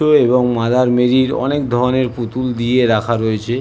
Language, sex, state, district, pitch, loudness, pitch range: Bengali, male, West Bengal, North 24 Parganas, 125 Hz, -15 LUFS, 120-130 Hz